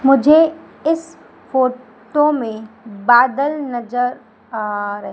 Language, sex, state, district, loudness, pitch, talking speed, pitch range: Hindi, female, Madhya Pradesh, Umaria, -17 LUFS, 250 Hz, 95 wpm, 220-290 Hz